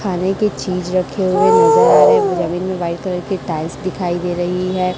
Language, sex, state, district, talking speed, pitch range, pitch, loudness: Hindi, female, Chhattisgarh, Raipur, 215 wpm, 175-190 Hz, 185 Hz, -16 LUFS